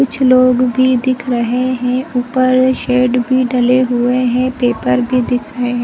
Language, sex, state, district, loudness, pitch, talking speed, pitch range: Hindi, female, Chhattisgarh, Rajnandgaon, -14 LUFS, 250 Hz, 175 wpm, 245-255 Hz